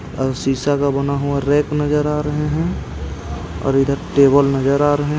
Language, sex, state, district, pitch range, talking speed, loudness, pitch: Hindi, male, Jharkhand, Ranchi, 135-145 Hz, 185 wpm, -18 LUFS, 140 Hz